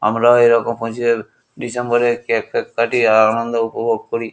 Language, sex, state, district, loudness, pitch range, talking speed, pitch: Bengali, male, West Bengal, Kolkata, -16 LUFS, 115-120 Hz, 140 wpm, 115 Hz